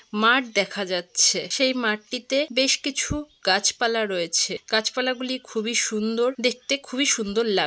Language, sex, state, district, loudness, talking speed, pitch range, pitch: Bengali, female, West Bengal, Malda, -23 LUFS, 150 wpm, 210-255 Hz, 230 Hz